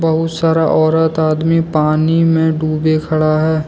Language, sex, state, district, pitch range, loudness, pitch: Hindi, male, Jharkhand, Deoghar, 155-160 Hz, -14 LUFS, 160 Hz